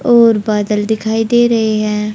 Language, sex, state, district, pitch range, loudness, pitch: Hindi, female, Haryana, Charkhi Dadri, 210-230 Hz, -13 LUFS, 220 Hz